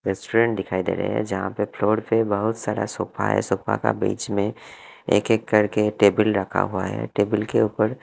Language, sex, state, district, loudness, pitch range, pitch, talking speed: Hindi, male, Punjab, Kapurthala, -22 LUFS, 100-110 Hz, 105 Hz, 200 wpm